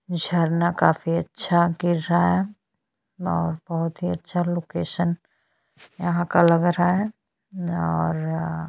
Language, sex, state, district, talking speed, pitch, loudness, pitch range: Hindi, female, Chhattisgarh, Sukma, 115 wpm, 170 Hz, -23 LUFS, 165-175 Hz